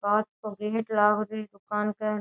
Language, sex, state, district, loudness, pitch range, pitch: Rajasthani, female, Rajasthan, Nagaur, -28 LUFS, 210-215 Hz, 210 Hz